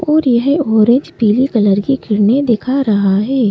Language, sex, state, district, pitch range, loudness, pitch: Hindi, female, Madhya Pradesh, Bhopal, 210-270 Hz, -13 LUFS, 240 Hz